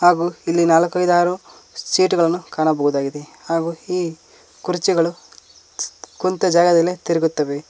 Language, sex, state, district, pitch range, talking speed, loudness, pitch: Kannada, male, Karnataka, Koppal, 160-180 Hz, 100 wpm, -19 LUFS, 170 Hz